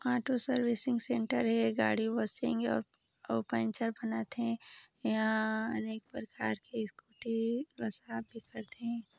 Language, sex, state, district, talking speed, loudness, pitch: Chhattisgarhi, female, Chhattisgarh, Sarguja, 115 wpm, -35 LUFS, 220 Hz